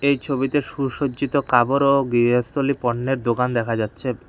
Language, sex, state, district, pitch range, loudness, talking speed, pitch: Bengali, male, West Bengal, Cooch Behar, 120-140 Hz, -21 LUFS, 140 wpm, 135 Hz